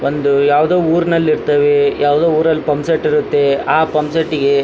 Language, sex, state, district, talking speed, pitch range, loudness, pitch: Kannada, male, Karnataka, Dharwad, 140 wpm, 145-160 Hz, -14 LUFS, 150 Hz